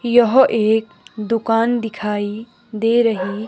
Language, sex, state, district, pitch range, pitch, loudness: Hindi, female, Himachal Pradesh, Shimla, 215-235 Hz, 225 Hz, -17 LUFS